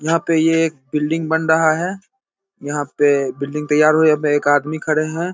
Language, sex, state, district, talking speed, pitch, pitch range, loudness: Hindi, male, Bihar, Begusarai, 225 wpm, 155 Hz, 150-165 Hz, -17 LUFS